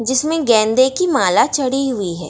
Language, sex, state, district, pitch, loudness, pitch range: Hindi, female, Bihar, Darbhanga, 260 Hz, -16 LUFS, 230-280 Hz